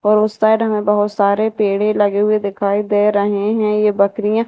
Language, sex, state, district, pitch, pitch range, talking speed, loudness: Hindi, female, Madhya Pradesh, Dhar, 210 Hz, 205-215 Hz, 200 wpm, -16 LUFS